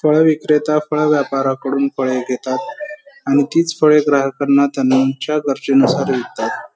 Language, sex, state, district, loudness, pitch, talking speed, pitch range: Marathi, male, Maharashtra, Pune, -16 LUFS, 140 Hz, 125 wpm, 135-150 Hz